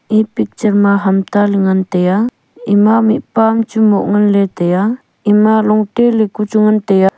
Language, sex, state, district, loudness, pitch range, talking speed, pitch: Wancho, female, Arunachal Pradesh, Longding, -13 LUFS, 200-220 Hz, 225 wpm, 210 Hz